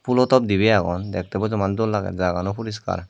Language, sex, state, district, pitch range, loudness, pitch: Chakma, male, Tripura, Dhalai, 95-110 Hz, -21 LUFS, 105 Hz